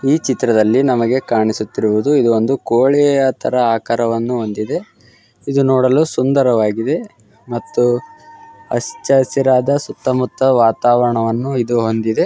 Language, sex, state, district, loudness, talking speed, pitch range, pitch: Kannada, male, Karnataka, Gulbarga, -15 LUFS, 85 wpm, 115-135 Hz, 120 Hz